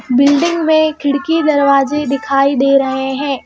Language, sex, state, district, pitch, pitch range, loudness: Hindi, female, Madhya Pradesh, Bhopal, 280 Hz, 275-300 Hz, -13 LUFS